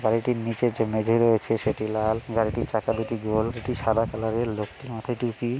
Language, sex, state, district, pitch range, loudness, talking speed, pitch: Bengali, male, West Bengal, Malda, 110-120 Hz, -26 LUFS, 195 wpm, 115 Hz